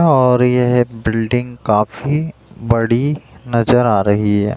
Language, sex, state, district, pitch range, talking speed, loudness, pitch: Hindi, male, Bihar, Jamui, 110-125 Hz, 120 wpm, -15 LUFS, 120 Hz